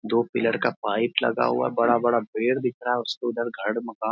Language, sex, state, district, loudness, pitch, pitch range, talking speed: Hindi, male, Bihar, Muzaffarpur, -24 LUFS, 120 Hz, 115-120 Hz, 245 wpm